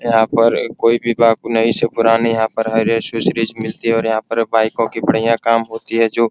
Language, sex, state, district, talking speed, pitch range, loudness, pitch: Hindi, male, Bihar, Araria, 230 wpm, 110-115 Hz, -16 LUFS, 115 Hz